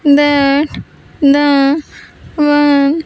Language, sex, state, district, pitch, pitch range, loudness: English, female, Andhra Pradesh, Sri Satya Sai, 290 Hz, 280-295 Hz, -12 LUFS